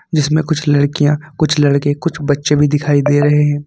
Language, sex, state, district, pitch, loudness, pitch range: Hindi, male, Jharkhand, Ranchi, 145 Hz, -14 LUFS, 145-150 Hz